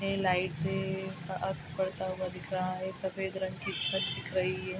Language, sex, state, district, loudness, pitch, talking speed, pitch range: Hindi, female, Bihar, Araria, -34 LUFS, 185 Hz, 210 wpm, 185-190 Hz